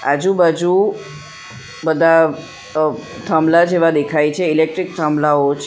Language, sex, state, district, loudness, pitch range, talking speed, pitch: Gujarati, female, Gujarat, Valsad, -15 LUFS, 150-170 Hz, 95 wpm, 160 Hz